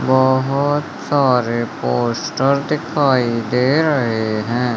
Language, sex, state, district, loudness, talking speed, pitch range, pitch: Hindi, male, Madhya Pradesh, Umaria, -17 LUFS, 90 wpm, 120-145 Hz, 130 Hz